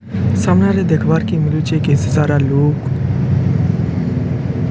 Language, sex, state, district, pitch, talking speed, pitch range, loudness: Odia, male, Odisha, Sambalpur, 140 Hz, 75 wpm, 130-150 Hz, -15 LUFS